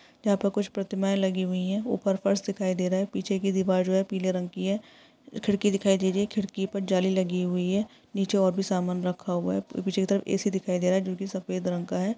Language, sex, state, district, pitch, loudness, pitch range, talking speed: Hindi, female, Andhra Pradesh, Visakhapatnam, 195 Hz, -27 LUFS, 185-200 Hz, 275 wpm